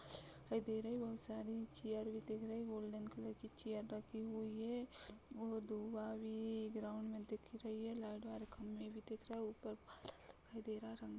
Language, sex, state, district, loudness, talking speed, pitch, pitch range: Hindi, female, Chhattisgarh, Bilaspur, -48 LUFS, 210 wpm, 220 Hz, 215-225 Hz